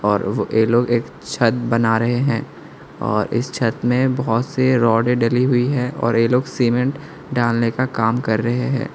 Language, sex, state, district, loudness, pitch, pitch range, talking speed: Hindi, male, Tripura, West Tripura, -18 LUFS, 120 Hz, 115-125 Hz, 190 wpm